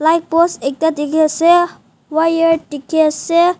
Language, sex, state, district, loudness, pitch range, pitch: Nagamese, female, Nagaland, Dimapur, -15 LUFS, 310-335 Hz, 320 Hz